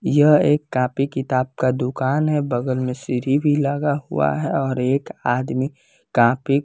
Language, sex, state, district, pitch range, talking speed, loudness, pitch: Hindi, female, Bihar, West Champaran, 130-145 Hz, 170 wpm, -20 LUFS, 135 Hz